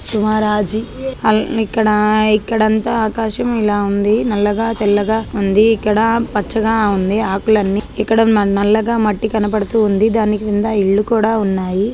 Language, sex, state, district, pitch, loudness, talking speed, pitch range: Telugu, female, Andhra Pradesh, Chittoor, 215 Hz, -15 LUFS, 110 wpm, 205-225 Hz